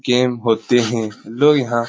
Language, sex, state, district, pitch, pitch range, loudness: Hindi, male, Bihar, Lakhisarai, 120 Hz, 115-125 Hz, -17 LUFS